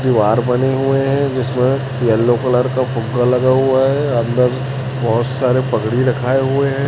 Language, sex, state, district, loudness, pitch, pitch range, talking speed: Hindi, male, Chhattisgarh, Raipur, -16 LUFS, 130 Hz, 125-135 Hz, 165 wpm